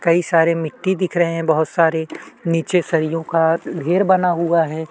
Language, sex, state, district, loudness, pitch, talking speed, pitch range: Hindi, male, Chhattisgarh, Kabirdham, -18 LUFS, 165 Hz, 185 wpm, 160-175 Hz